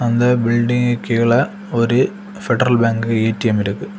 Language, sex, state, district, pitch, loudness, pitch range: Tamil, male, Tamil Nadu, Kanyakumari, 120 Hz, -17 LUFS, 115-125 Hz